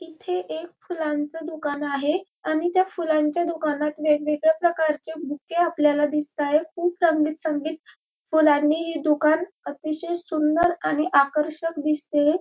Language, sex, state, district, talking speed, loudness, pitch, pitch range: Marathi, female, Maharashtra, Dhule, 120 wpm, -23 LUFS, 315 Hz, 300-335 Hz